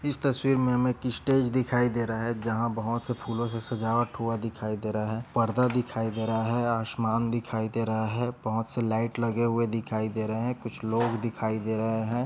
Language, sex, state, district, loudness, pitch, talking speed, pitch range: Hindi, male, Maharashtra, Dhule, -28 LUFS, 115 Hz, 220 wpm, 110-120 Hz